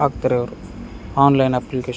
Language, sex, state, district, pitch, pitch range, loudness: Kannada, male, Karnataka, Raichur, 130 Hz, 125-140 Hz, -18 LUFS